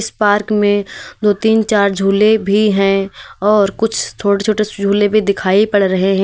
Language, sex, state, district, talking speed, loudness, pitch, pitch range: Hindi, female, Uttar Pradesh, Lalitpur, 175 wpm, -14 LUFS, 205 Hz, 195-215 Hz